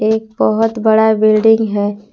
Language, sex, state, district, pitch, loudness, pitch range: Hindi, female, Jharkhand, Palamu, 220 Hz, -13 LUFS, 215-220 Hz